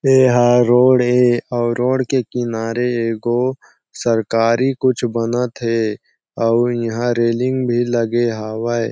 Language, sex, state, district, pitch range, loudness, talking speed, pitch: Chhattisgarhi, male, Chhattisgarh, Sarguja, 115-125 Hz, -17 LUFS, 130 wpm, 120 Hz